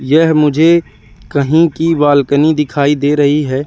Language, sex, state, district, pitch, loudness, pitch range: Hindi, male, Madhya Pradesh, Katni, 150 Hz, -12 LUFS, 145-160 Hz